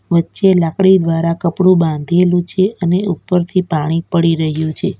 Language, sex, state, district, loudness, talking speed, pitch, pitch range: Gujarati, female, Gujarat, Valsad, -14 LUFS, 145 wpm, 170 Hz, 165-185 Hz